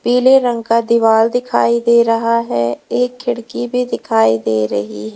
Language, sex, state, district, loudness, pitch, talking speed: Hindi, female, Uttar Pradesh, Lalitpur, -15 LUFS, 230 Hz, 175 wpm